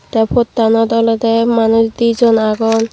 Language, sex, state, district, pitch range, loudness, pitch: Chakma, female, Tripura, Dhalai, 225-230 Hz, -13 LUFS, 225 Hz